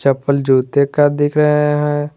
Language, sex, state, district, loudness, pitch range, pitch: Hindi, male, Jharkhand, Garhwa, -15 LUFS, 140-150 Hz, 145 Hz